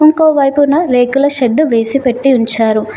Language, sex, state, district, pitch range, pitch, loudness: Telugu, female, Telangana, Mahabubabad, 240-290 Hz, 270 Hz, -11 LUFS